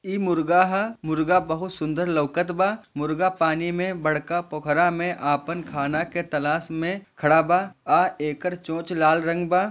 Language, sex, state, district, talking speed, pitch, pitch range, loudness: Bhojpuri, male, Bihar, Gopalganj, 165 wpm, 170 Hz, 155-180 Hz, -23 LUFS